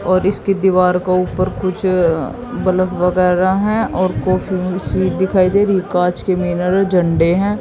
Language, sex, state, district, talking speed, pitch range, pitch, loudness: Hindi, female, Haryana, Jhajjar, 160 wpm, 180-190 Hz, 185 Hz, -16 LUFS